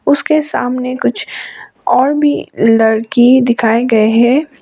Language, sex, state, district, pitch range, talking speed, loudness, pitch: Hindi, female, Sikkim, Gangtok, 225-280 Hz, 115 wpm, -12 LUFS, 250 Hz